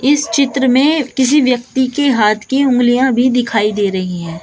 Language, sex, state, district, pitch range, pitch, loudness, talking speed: Hindi, female, Uttar Pradesh, Shamli, 215-275 Hz, 255 Hz, -13 LUFS, 190 wpm